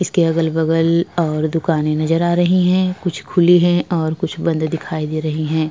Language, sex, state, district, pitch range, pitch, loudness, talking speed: Hindi, female, Bihar, Vaishali, 155-175 Hz, 165 Hz, -17 LUFS, 200 wpm